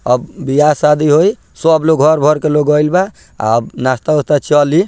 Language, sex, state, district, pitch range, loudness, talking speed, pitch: Bhojpuri, male, Bihar, Muzaffarpur, 145-160 Hz, -12 LUFS, 170 wpm, 150 Hz